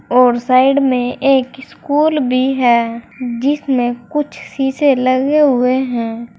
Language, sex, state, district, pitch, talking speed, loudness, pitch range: Hindi, female, Uttar Pradesh, Saharanpur, 255 Hz, 120 wpm, -15 LUFS, 245-275 Hz